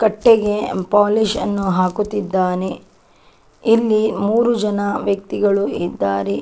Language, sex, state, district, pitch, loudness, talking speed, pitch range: Kannada, female, Karnataka, Chamarajanagar, 205 Hz, -18 LUFS, 95 wpm, 185-215 Hz